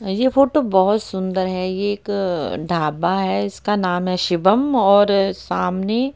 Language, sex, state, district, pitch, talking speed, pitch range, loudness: Hindi, female, Haryana, Rohtak, 195 Hz, 155 wpm, 185-210 Hz, -19 LUFS